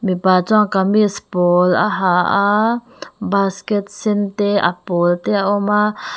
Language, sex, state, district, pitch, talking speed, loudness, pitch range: Mizo, female, Mizoram, Aizawl, 200 Hz, 155 wpm, -16 LUFS, 180-210 Hz